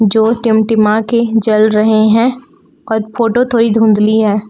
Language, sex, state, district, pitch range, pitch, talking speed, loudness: Hindi, female, Jharkhand, Palamu, 215-230 Hz, 220 Hz, 135 wpm, -11 LUFS